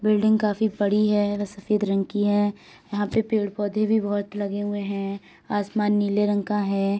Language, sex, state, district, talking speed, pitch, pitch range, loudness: Hindi, female, Uttar Pradesh, Etah, 180 wpm, 205 Hz, 200-210 Hz, -24 LUFS